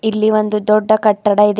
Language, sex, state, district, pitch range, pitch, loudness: Kannada, female, Karnataka, Bidar, 210-215 Hz, 215 Hz, -14 LUFS